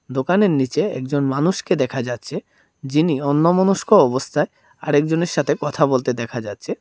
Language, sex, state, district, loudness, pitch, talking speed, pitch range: Bengali, male, Tripura, Dhalai, -19 LUFS, 145 Hz, 130 wpm, 130-160 Hz